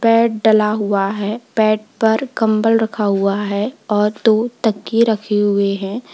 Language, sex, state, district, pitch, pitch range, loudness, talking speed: Hindi, female, Uttar Pradesh, Lalitpur, 215 Hz, 205-225 Hz, -17 LUFS, 165 wpm